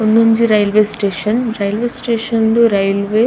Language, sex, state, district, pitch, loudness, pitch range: Tulu, female, Karnataka, Dakshina Kannada, 220 Hz, -14 LUFS, 205-230 Hz